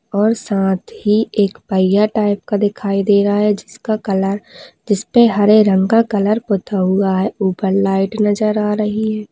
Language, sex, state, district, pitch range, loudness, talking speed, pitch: Hindi, female, West Bengal, Dakshin Dinajpur, 195-215 Hz, -16 LUFS, 175 wpm, 205 Hz